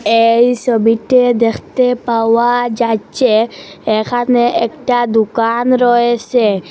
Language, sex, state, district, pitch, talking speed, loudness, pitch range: Bengali, female, Assam, Hailakandi, 235 Hz, 90 wpm, -13 LUFS, 225-245 Hz